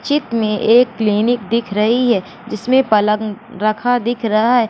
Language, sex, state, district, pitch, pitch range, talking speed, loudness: Hindi, female, Madhya Pradesh, Katni, 230 Hz, 215-240 Hz, 165 wpm, -16 LUFS